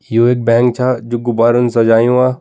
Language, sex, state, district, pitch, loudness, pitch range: Kumaoni, male, Uttarakhand, Tehri Garhwal, 120 Hz, -13 LUFS, 115-125 Hz